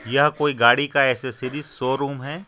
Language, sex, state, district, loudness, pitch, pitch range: Hindi, male, Jharkhand, Ranchi, -21 LUFS, 140 Hz, 130-145 Hz